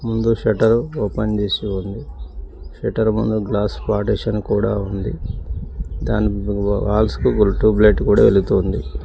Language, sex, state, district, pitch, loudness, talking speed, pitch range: Telugu, male, Telangana, Mahabubabad, 105 Hz, -18 LUFS, 135 wpm, 95-110 Hz